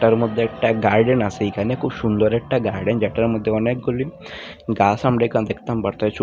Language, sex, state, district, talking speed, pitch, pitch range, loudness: Bengali, male, Tripura, Unakoti, 175 wpm, 115 Hz, 105-120 Hz, -20 LUFS